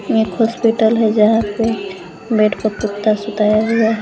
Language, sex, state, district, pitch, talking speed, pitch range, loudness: Hindi, female, Jharkhand, Garhwa, 215 Hz, 180 wpm, 210-225 Hz, -16 LUFS